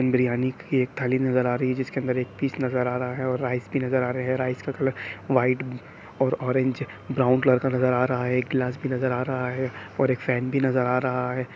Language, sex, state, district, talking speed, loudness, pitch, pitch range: Hindi, male, Bihar, Sitamarhi, 260 wpm, -25 LUFS, 130 Hz, 125-130 Hz